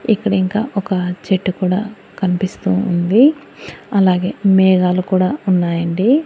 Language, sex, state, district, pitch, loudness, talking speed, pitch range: Telugu, female, Andhra Pradesh, Annamaya, 185 Hz, -16 LUFS, 115 wpm, 180-200 Hz